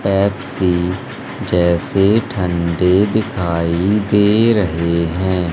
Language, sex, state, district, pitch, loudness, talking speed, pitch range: Hindi, male, Madhya Pradesh, Umaria, 95 Hz, -16 LUFS, 75 wpm, 85-105 Hz